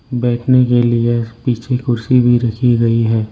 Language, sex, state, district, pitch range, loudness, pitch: Hindi, male, Arunachal Pradesh, Lower Dibang Valley, 115-125 Hz, -14 LUFS, 120 Hz